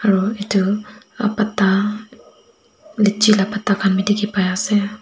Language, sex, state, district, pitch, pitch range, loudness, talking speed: Nagamese, female, Nagaland, Dimapur, 205 Hz, 195-215 Hz, -18 LUFS, 130 wpm